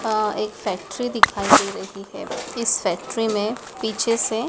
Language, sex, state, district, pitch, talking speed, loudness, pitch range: Hindi, female, Madhya Pradesh, Dhar, 220 Hz, 160 wpm, -21 LUFS, 210-235 Hz